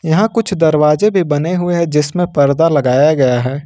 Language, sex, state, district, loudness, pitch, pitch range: Hindi, male, Jharkhand, Ranchi, -13 LUFS, 160 Hz, 145-175 Hz